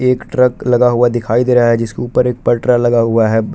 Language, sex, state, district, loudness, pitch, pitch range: Hindi, male, Jharkhand, Palamu, -13 LUFS, 120 Hz, 115-125 Hz